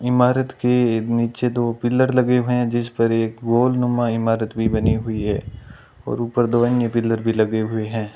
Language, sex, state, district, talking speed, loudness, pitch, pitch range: Hindi, male, Rajasthan, Bikaner, 190 wpm, -20 LUFS, 115 Hz, 115-125 Hz